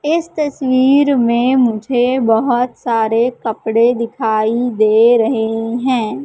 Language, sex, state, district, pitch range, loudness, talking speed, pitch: Hindi, female, Madhya Pradesh, Katni, 225-255 Hz, -14 LUFS, 105 wpm, 240 Hz